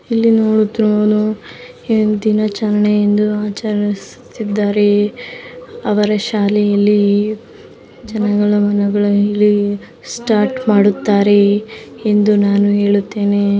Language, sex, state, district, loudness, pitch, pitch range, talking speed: Kannada, female, Karnataka, Dharwad, -14 LUFS, 210 Hz, 205-215 Hz, 65 wpm